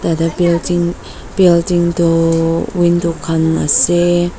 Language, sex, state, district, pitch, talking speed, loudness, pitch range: Nagamese, female, Nagaland, Dimapur, 170 Hz, 95 wpm, -13 LUFS, 165-175 Hz